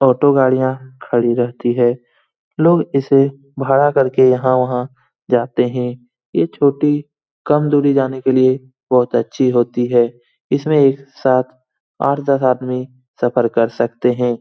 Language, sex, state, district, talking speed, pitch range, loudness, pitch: Hindi, male, Bihar, Lakhisarai, 155 wpm, 125-140 Hz, -16 LUFS, 130 Hz